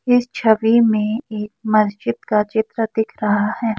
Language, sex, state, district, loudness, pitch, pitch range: Hindi, female, Assam, Kamrup Metropolitan, -18 LUFS, 220 Hz, 210-225 Hz